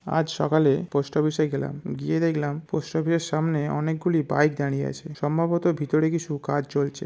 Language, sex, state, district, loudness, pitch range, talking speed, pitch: Bengali, male, West Bengal, North 24 Parganas, -25 LUFS, 145-160 Hz, 185 wpm, 155 Hz